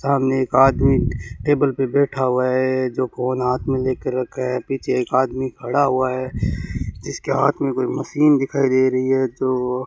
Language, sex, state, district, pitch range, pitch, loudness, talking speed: Hindi, male, Rajasthan, Bikaner, 125-135 Hz, 130 Hz, -20 LUFS, 195 wpm